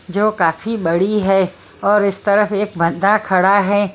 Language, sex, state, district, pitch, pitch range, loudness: Hindi, female, Maharashtra, Mumbai Suburban, 200 Hz, 185-205 Hz, -16 LUFS